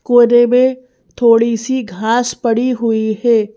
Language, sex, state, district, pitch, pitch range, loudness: Hindi, female, Madhya Pradesh, Bhopal, 235 Hz, 225-250 Hz, -14 LUFS